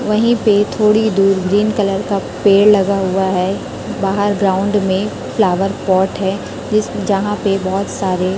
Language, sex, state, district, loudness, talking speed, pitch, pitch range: Hindi, female, Chhattisgarh, Raipur, -15 LUFS, 155 wpm, 195 Hz, 190-205 Hz